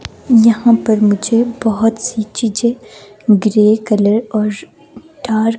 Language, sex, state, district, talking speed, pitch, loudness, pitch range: Hindi, female, Himachal Pradesh, Shimla, 95 wpm, 225 Hz, -14 LUFS, 210-230 Hz